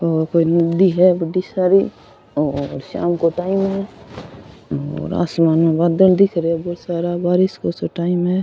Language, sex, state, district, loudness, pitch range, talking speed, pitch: Rajasthani, female, Rajasthan, Churu, -18 LUFS, 165-185 Hz, 180 wpm, 175 Hz